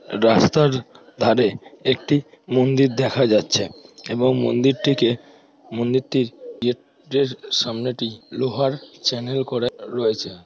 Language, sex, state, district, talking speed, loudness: Bengali, male, West Bengal, Purulia, 90 wpm, -21 LUFS